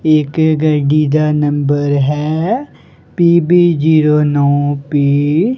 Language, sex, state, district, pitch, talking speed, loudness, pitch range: Punjabi, male, Punjab, Kapurthala, 150 Hz, 105 wpm, -13 LUFS, 145-160 Hz